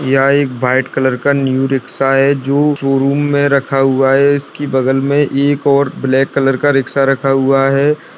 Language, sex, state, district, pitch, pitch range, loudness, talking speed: Hindi, male, Bihar, Darbhanga, 135 Hz, 135-140 Hz, -13 LUFS, 185 wpm